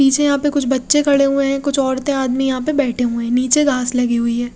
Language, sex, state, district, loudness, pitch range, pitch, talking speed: Hindi, female, Odisha, Khordha, -16 LUFS, 250-285 Hz, 270 Hz, 275 wpm